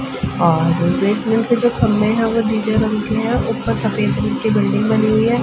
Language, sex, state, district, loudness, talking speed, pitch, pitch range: Hindi, female, Uttar Pradesh, Ghazipur, -17 LUFS, 210 wpm, 220 Hz, 170-225 Hz